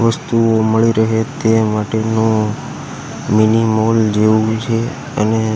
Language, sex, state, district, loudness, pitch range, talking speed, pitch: Gujarati, male, Gujarat, Gandhinagar, -15 LUFS, 110-115 Hz, 110 wpm, 110 Hz